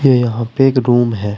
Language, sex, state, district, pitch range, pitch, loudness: Hindi, male, Uttar Pradesh, Shamli, 115-130 Hz, 120 Hz, -14 LUFS